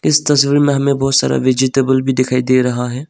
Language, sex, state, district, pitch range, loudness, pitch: Hindi, male, Arunachal Pradesh, Longding, 130-140 Hz, -14 LUFS, 135 Hz